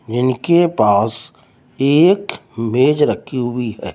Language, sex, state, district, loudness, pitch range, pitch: Hindi, male, Uttar Pradesh, Lucknow, -16 LUFS, 120-145 Hz, 130 Hz